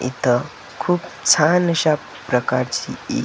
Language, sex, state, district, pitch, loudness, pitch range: Marathi, male, Maharashtra, Gondia, 155 Hz, -19 LUFS, 130-175 Hz